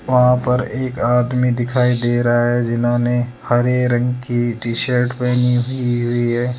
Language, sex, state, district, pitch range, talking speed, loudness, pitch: Hindi, male, Rajasthan, Jaipur, 120-125 Hz, 155 wpm, -17 LUFS, 120 Hz